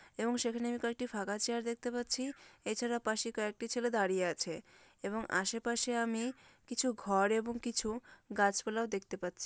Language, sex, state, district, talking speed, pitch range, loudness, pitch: Bengali, female, West Bengal, Dakshin Dinajpur, 150 wpm, 200-240 Hz, -36 LUFS, 230 Hz